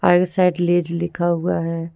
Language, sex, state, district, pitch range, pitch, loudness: Hindi, female, Jharkhand, Deoghar, 170-175 Hz, 175 Hz, -19 LUFS